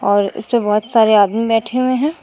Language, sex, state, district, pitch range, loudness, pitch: Hindi, female, Uttar Pradesh, Shamli, 210-240 Hz, -15 LUFS, 225 Hz